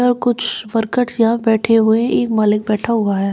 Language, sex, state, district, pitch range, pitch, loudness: Hindi, female, Uttar Pradesh, Shamli, 215-235 Hz, 225 Hz, -16 LUFS